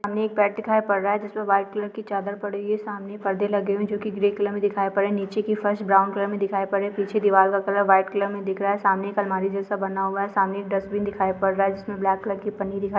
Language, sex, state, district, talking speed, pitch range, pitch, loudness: Hindi, female, Chhattisgarh, Jashpur, 315 wpm, 195-205 Hz, 200 Hz, -24 LUFS